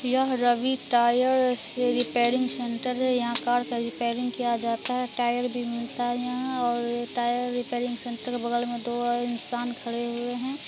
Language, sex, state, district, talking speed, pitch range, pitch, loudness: Hindi, female, Bihar, Araria, 165 wpm, 240-250 Hz, 245 Hz, -27 LUFS